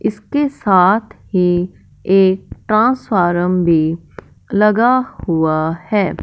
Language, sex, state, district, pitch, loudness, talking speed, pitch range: Hindi, male, Punjab, Fazilka, 190 Hz, -15 LUFS, 85 wpm, 175-215 Hz